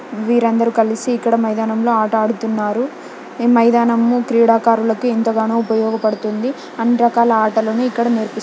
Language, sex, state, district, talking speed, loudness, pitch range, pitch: Telugu, female, Telangana, Nalgonda, 120 wpm, -16 LUFS, 220-235 Hz, 230 Hz